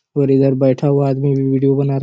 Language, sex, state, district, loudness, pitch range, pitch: Hindi, male, Chhattisgarh, Raigarh, -15 LUFS, 135-140 Hz, 135 Hz